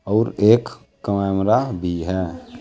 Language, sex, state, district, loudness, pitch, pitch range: Hindi, male, Uttar Pradesh, Saharanpur, -20 LUFS, 100 Hz, 95-110 Hz